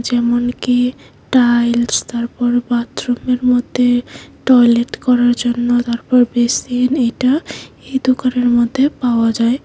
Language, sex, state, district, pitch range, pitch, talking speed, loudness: Bengali, female, Tripura, West Tripura, 240-250 Hz, 245 Hz, 100 wpm, -15 LUFS